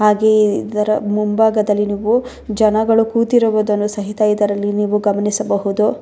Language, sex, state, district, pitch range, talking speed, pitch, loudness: Kannada, female, Karnataka, Bellary, 205-220 Hz, 100 wpm, 210 Hz, -16 LUFS